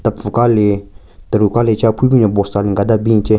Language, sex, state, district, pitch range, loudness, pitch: Rengma, male, Nagaland, Kohima, 100-115 Hz, -14 LUFS, 105 Hz